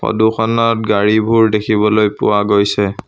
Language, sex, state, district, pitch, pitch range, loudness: Assamese, male, Assam, Sonitpur, 110 Hz, 105-110 Hz, -13 LUFS